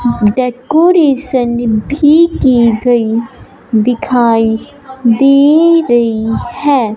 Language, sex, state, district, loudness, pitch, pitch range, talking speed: Hindi, female, Punjab, Fazilka, -11 LUFS, 245 Hz, 230-285 Hz, 70 wpm